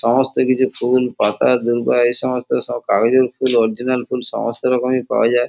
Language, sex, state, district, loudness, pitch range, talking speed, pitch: Bengali, male, West Bengal, Kolkata, -17 LUFS, 120-130 Hz, 175 wpm, 125 Hz